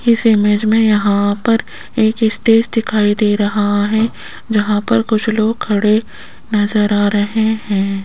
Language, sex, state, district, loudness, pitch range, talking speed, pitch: Hindi, female, Rajasthan, Jaipur, -15 LUFS, 205-220 Hz, 150 wpm, 215 Hz